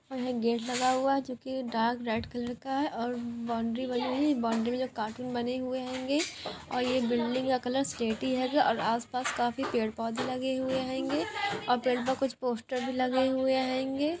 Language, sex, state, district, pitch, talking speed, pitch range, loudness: Hindi, female, Bihar, Araria, 255 Hz, 195 wpm, 240-260 Hz, -31 LUFS